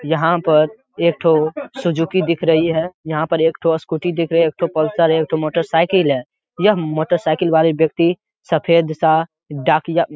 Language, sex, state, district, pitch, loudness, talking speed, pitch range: Hindi, male, Bihar, Jamui, 165 Hz, -17 LUFS, 195 wpm, 160-170 Hz